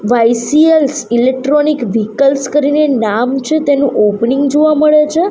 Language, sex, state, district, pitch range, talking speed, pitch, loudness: Gujarati, female, Gujarat, Gandhinagar, 240-300 Hz, 115 wpm, 280 Hz, -12 LUFS